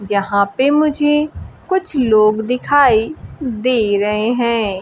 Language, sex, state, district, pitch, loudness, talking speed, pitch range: Hindi, female, Bihar, Kaimur, 240 Hz, -15 LUFS, 110 wpm, 210-295 Hz